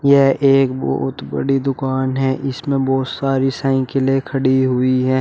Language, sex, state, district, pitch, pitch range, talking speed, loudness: Hindi, male, Uttar Pradesh, Shamli, 135 Hz, 130-135 Hz, 160 wpm, -17 LUFS